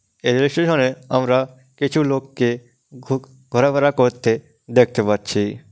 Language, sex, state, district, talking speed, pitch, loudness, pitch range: Bengali, male, West Bengal, Malda, 115 wpm, 130 Hz, -19 LUFS, 120-135 Hz